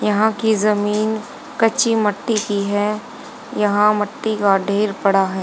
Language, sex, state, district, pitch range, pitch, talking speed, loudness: Hindi, female, Haryana, Charkhi Dadri, 205-220 Hz, 210 Hz, 145 wpm, -18 LUFS